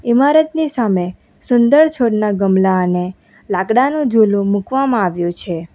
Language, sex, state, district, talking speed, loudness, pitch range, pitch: Gujarati, female, Gujarat, Valsad, 115 wpm, -15 LUFS, 185-265 Hz, 215 Hz